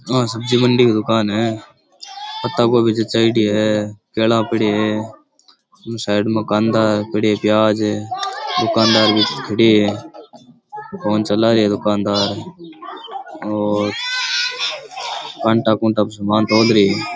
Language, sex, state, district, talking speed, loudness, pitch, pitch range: Rajasthani, male, Rajasthan, Churu, 130 wpm, -17 LUFS, 110 Hz, 105-120 Hz